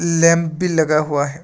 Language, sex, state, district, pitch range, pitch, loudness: Hindi, male, Assam, Kamrup Metropolitan, 155-170 Hz, 160 Hz, -16 LUFS